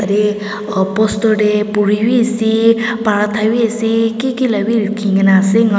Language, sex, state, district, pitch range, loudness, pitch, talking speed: Nagamese, female, Nagaland, Dimapur, 210-225 Hz, -14 LUFS, 215 Hz, 155 wpm